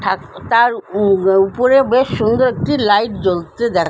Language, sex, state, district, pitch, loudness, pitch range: Bengali, female, West Bengal, Paschim Medinipur, 210 Hz, -15 LUFS, 190-235 Hz